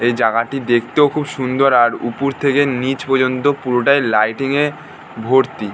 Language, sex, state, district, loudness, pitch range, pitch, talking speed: Bengali, male, West Bengal, North 24 Parganas, -16 LUFS, 120-140 Hz, 130 Hz, 145 wpm